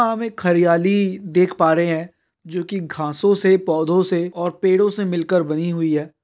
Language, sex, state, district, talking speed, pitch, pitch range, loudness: Hindi, male, Bihar, Kishanganj, 200 wpm, 175 Hz, 165-190 Hz, -19 LUFS